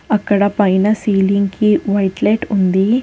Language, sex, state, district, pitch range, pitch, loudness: Telugu, female, Telangana, Hyderabad, 195-215 Hz, 200 Hz, -15 LUFS